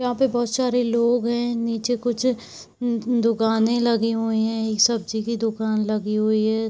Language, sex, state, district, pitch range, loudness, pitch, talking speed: Hindi, female, Chhattisgarh, Raigarh, 220-240 Hz, -22 LUFS, 230 Hz, 170 wpm